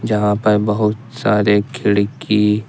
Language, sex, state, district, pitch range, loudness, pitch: Hindi, male, Jharkhand, Ranchi, 105-110 Hz, -16 LUFS, 105 Hz